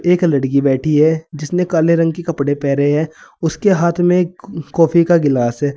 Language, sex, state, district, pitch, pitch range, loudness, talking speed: Hindi, male, Uttar Pradesh, Saharanpur, 160 Hz, 145-170 Hz, -15 LUFS, 185 wpm